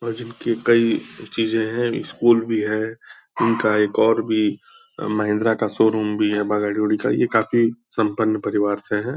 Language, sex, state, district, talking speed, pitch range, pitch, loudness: Hindi, male, Bihar, Purnia, 185 wpm, 105-115 Hz, 110 Hz, -20 LUFS